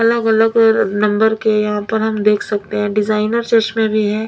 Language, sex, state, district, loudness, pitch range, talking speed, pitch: Hindi, female, Punjab, Fazilka, -15 LUFS, 210-225 Hz, 210 wpm, 215 Hz